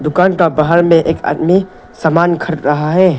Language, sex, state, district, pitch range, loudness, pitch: Hindi, male, Arunachal Pradesh, Lower Dibang Valley, 155-175 Hz, -13 LUFS, 165 Hz